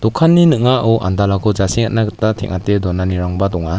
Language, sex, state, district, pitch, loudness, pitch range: Garo, male, Meghalaya, West Garo Hills, 100 Hz, -15 LUFS, 95-115 Hz